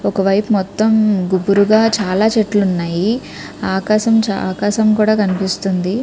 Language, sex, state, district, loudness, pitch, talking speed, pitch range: Telugu, female, Andhra Pradesh, Krishna, -15 LUFS, 205 Hz, 110 wpm, 190-215 Hz